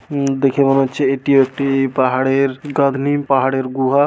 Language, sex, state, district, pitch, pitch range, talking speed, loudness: Bengali, male, West Bengal, Paschim Medinipur, 135 Hz, 135-140 Hz, 145 wpm, -16 LUFS